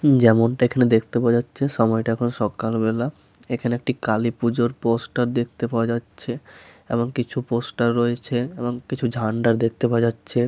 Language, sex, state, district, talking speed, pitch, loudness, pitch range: Bengali, male, West Bengal, Paschim Medinipur, 150 wpm, 120 Hz, -22 LUFS, 115-120 Hz